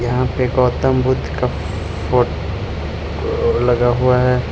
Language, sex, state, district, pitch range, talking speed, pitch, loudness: Hindi, male, Arunachal Pradesh, Lower Dibang Valley, 90-125 Hz, 120 wpm, 120 Hz, -18 LUFS